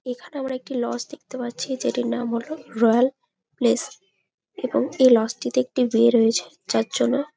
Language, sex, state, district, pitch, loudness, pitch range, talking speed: Bengali, female, West Bengal, Jalpaiguri, 245 Hz, -22 LUFS, 230-265 Hz, 180 wpm